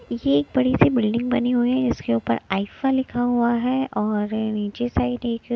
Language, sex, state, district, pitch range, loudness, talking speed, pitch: Hindi, female, Punjab, Kapurthala, 205-245 Hz, -22 LUFS, 195 wpm, 235 Hz